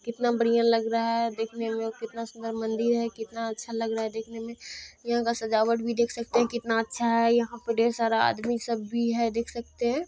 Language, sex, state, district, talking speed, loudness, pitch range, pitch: Hindi, female, Bihar, Purnia, 240 wpm, -27 LUFS, 225-235 Hz, 230 Hz